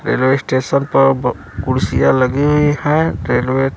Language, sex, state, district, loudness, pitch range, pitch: Hindi, male, Bihar, Kaimur, -15 LUFS, 125-145 Hz, 135 Hz